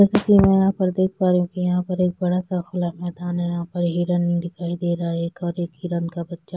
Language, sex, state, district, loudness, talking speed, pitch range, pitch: Hindi, female, Chhattisgarh, Sukma, -22 LUFS, 245 wpm, 175-185 Hz, 175 Hz